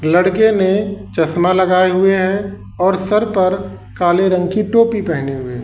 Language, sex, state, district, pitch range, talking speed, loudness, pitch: Hindi, male, Uttar Pradesh, Lalitpur, 165-200 Hz, 160 wpm, -15 LUFS, 185 Hz